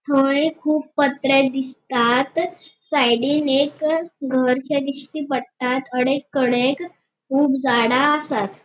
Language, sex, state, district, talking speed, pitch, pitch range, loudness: Konkani, female, Goa, North and South Goa, 95 wpm, 275 Hz, 255-295 Hz, -20 LUFS